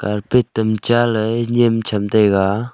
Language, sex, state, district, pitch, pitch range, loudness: Wancho, male, Arunachal Pradesh, Longding, 110 Hz, 105-120 Hz, -17 LUFS